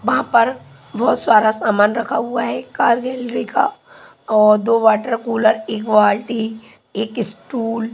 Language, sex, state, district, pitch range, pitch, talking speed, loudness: Hindi, female, Punjab, Pathankot, 220-235 Hz, 230 Hz, 160 wpm, -17 LUFS